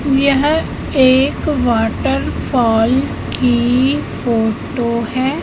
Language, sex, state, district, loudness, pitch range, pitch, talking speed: Hindi, female, Madhya Pradesh, Katni, -15 LUFS, 235-275 Hz, 255 Hz, 75 wpm